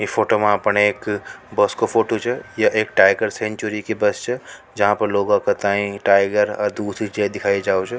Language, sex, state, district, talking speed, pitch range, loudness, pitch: Rajasthani, male, Rajasthan, Nagaur, 185 wpm, 100-105 Hz, -19 LUFS, 105 Hz